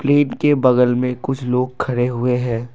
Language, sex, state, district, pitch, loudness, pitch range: Hindi, male, Assam, Kamrup Metropolitan, 125 Hz, -18 LUFS, 125-130 Hz